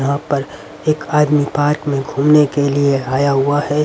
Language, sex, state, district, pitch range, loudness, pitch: Hindi, male, Haryana, Rohtak, 140-150 Hz, -16 LUFS, 145 Hz